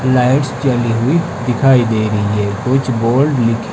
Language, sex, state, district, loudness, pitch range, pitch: Hindi, male, Himachal Pradesh, Shimla, -14 LUFS, 115-130 Hz, 125 Hz